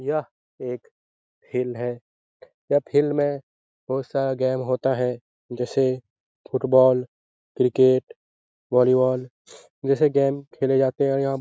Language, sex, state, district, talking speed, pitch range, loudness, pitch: Hindi, male, Bihar, Lakhisarai, 125 wpm, 125-135 Hz, -23 LUFS, 130 Hz